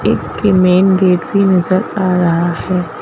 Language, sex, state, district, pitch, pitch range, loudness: Hindi, female, Madhya Pradesh, Bhopal, 185 Hz, 180-190 Hz, -13 LUFS